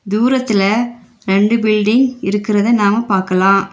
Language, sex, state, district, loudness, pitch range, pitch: Tamil, female, Tamil Nadu, Nilgiris, -14 LUFS, 195-235 Hz, 210 Hz